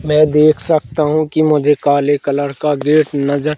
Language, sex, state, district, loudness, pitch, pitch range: Hindi, male, Madhya Pradesh, Katni, -14 LUFS, 150 Hz, 145-155 Hz